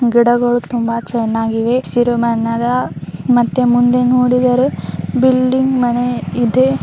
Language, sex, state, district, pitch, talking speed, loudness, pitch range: Kannada, female, Karnataka, Bijapur, 245 Hz, 95 wpm, -15 LUFS, 235-250 Hz